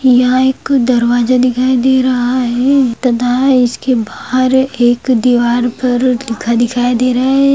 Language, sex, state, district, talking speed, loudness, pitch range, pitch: Hindi, female, Bihar, Darbhanga, 145 wpm, -12 LUFS, 245-260 Hz, 250 Hz